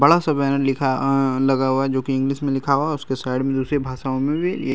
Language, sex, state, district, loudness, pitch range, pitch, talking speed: Hindi, male, Bihar, Araria, -21 LUFS, 130-140 Hz, 135 Hz, 300 wpm